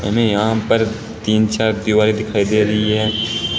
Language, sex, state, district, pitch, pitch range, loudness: Hindi, male, Rajasthan, Bikaner, 110 Hz, 105-110 Hz, -17 LUFS